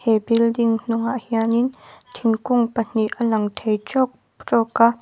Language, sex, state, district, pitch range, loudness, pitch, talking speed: Mizo, female, Mizoram, Aizawl, 225-235 Hz, -21 LUFS, 230 Hz, 165 wpm